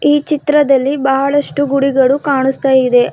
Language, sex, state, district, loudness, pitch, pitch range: Kannada, female, Karnataka, Bidar, -13 LUFS, 275 Hz, 270-290 Hz